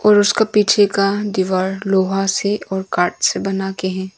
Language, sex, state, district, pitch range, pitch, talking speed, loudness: Hindi, female, Arunachal Pradesh, Longding, 190-205 Hz, 195 Hz, 185 wpm, -17 LUFS